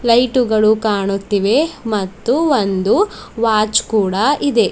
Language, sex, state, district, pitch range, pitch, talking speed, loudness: Kannada, female, Karnataka, Bidar, 205-255 Hz, 220 Hz, 90 wpm, -16 LUFS